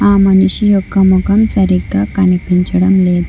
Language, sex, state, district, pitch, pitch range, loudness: Telugu, female, Telangana, Hyderabad, 190 Hz, 180-195 Hz, -11 LUFS